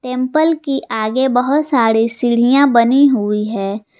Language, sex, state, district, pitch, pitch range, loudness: Hindi, female, Jharkhand, Ranchi, 250 Hz, 225-275 Hz, -14 LUFS